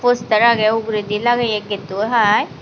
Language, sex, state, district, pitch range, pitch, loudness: Chakma, female, Tripura, Dhalai, 210-235 Hz, 220 Hz, -17 LUFS